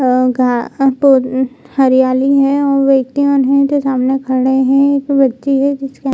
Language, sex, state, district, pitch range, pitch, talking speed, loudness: Hindi, female, Bihar, Jamui, 260-275 Hz, 270 Hz, 155 wpm, -13 LUFS